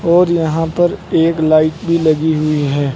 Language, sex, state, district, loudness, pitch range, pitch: Hindi, male, Uttar Pradesh, Saharanpur, -14 LUFS, 155-170 Hz, 160 Hz